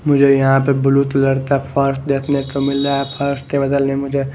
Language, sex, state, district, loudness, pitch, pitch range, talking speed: Hindi, male, Maharashtra, Mumbai Suburban, -16 LUFS, 140 Hz, 135-140 Hz, 235 wpm